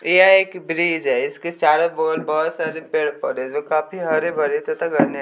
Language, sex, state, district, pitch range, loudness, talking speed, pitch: Hindi, male, Bihar, West Champaran, 155-185 Hz, -19 LUFS, 205 wpm, 165 Hz